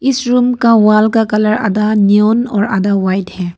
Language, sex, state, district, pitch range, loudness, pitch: Hindi, female, Arunachal Pradesh, Papum Pare, 200-230 Hz, -12 LUFS, 215 Hz